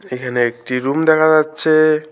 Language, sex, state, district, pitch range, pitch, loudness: Bengali, male, West Bengal, Alipurduar, 125-155 Hz, 155 Hz, -15 LUFS